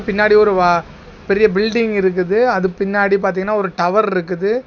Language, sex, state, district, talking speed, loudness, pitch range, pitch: Tamil, male, Tamil Nadu, Kanyakumari, 140 wpm, -15 LUFS, 190-215 Hz, 200 Hz